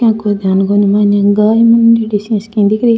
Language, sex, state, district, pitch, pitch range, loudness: Rajasthani, female, Rajasthan, Churu, 210 Hz, 205-225 Hz, -11 LUFS